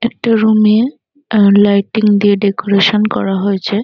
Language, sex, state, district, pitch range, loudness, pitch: Bengali, female, West Bengal, North 24 Parganas, 200-220 Hz, -12 LUFS, 210 Hz